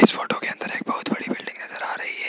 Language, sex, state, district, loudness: Hindi, male, Rajasthan, Jaipur, -26 LUFS